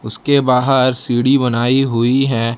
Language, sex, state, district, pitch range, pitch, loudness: Hindi, male, Jharkhand, Palamu, 120-135 Hz, 125 Hz, -14 LUFS